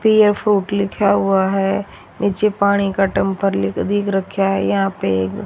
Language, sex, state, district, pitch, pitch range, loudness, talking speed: Hindi, female, Haryana, Rohtak, 195 Hz, 195-205 Hz, -17 LUFS, 175 wpm